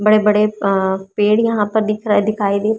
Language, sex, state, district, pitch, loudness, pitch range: Hindi, female, Maharashtra, Chandrapur, 210 Hz, -16 LUFS, 200-215 Hz